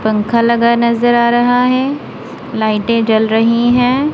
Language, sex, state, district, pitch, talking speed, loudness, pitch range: Hindi, female, Punjab, Kapurthala, 235 Hz, 145 wpm, -12 LUFS, 225-245 Hz